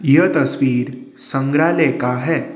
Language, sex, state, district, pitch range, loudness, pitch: Hindi, male, Assam, Kamrup Metropolitan, 125-160 Hz, -17 LUFS, 135 Hz